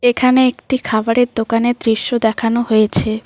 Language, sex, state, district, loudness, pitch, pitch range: Bengali, female, West Bengal, Cooch Behar, -15 LUFS, 230 Hz, 225-245 Hz